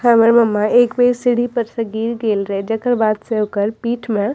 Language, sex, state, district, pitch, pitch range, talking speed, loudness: Maithili, female, Bihar, Madhepura, 230 Hz, 215-240 Hz, 235 wpm, -17 LUFS